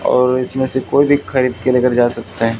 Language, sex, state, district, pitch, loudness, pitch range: Hindi, male, Haryana, Jhajjar, 125 Hz, -15 LUFS, 120-130 Hz